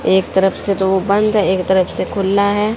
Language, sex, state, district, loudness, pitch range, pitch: Hindi, female, Haryana, Jhajjar, -15 LUFS, 190-200 Hz, 195 Hz